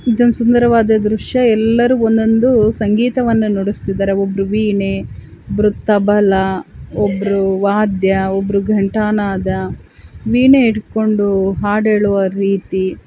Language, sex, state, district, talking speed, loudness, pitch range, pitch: Kannada, female, Karnataka, Chamarajanagar, 100 wpm, -14 LUFS, 195-225 Hz, 205 Hz